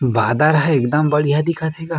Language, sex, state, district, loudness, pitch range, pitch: Chhattisgarhi, male, Chhattisgarh, Raigarh, -17 LUFS, 135-160 Hz, 150 Hz